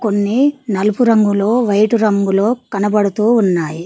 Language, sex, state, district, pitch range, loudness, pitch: Telugu, female, Telangana, Mahabubabad, 200-230 Hz, -14 LUFS, 210 Hz